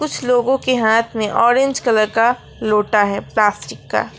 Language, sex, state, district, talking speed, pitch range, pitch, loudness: Hindi, female, West Bengal, Alipurduar, 170 wpm, 210-250 Hz, 225 Hz, -16 LUFS